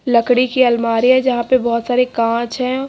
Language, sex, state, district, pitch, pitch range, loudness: Hindi, female, Haryana, Jhajjar, 245 Hz, 235-255 Hz, -15 LUFS